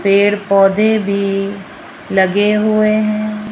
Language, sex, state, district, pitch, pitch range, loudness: Hindi, female, Rajasthan, Jaipur, 205 Hz, 195-215 Hz, -14 LUFS